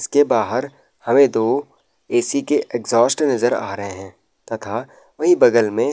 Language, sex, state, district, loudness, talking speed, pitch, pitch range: Hindi, male, Uttar Pradesh, Muzaffarnagar, -18 LUFS, 160 wpm, 120 Hz, 105-140 Hz